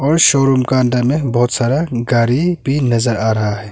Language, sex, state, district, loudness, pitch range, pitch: Hindi, male, Arunachal Pradesh, Longding, -14 LUFS, 120-140 Hz, 125 Hz